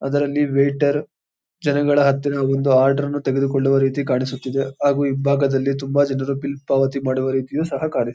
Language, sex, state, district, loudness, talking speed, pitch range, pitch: Kannada, male, Karnataka, Mysore, -19 LUFS, 145 wpm, 135-145 Hz, 140 Hz